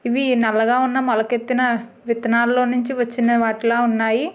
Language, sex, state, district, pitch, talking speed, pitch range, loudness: Telugu, female, Andhra Pradesh, Srikakulam, 240 Hz, 125 wpm, 230-250 Hz, -19 LUFS